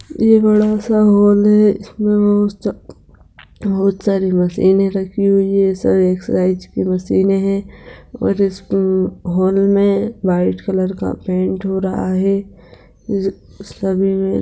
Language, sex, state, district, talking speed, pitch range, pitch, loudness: Hindi, female, Bihar, Begusarai, 125 wpm, 190-205 Hz, 195 Hz, -16 LUFS